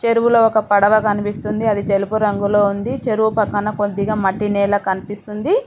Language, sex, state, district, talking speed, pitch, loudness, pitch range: Telugu, female, Telangana, Mahabubabad, 150 wpm, 210 Hz, -17 LUFS, 205-220 Hz